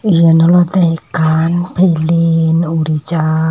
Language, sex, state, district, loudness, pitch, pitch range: Chakma, female, Tripura, Unakoti, -12 LUFS, 165 Hz, 160-175 Hz